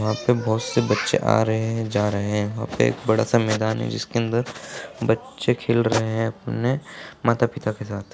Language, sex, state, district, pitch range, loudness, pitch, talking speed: Hindi, male, Bihar, Purnia, 110-115 Hz, -23 LUFS, 110 Hz, 200 wpm